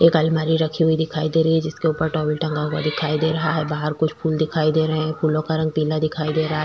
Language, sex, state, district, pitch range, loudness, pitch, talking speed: Hindi, female, Chhattisgarh, Korba, 155-160 Hz, -21 LUFS, 155 Hz, 290 wpm